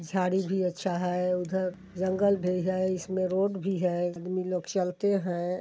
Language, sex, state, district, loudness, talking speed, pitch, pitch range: Hindi, female, Chhattisgarh, Sarguja, -29 LUFS, 170 wpm, 185 Hz, 180-190 Hz